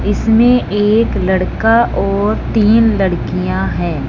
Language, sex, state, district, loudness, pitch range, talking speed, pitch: Hindi, male, Punjab, Fazilka, -13 LUFS, 185-225 Hz, 105 wpm, 205 Hz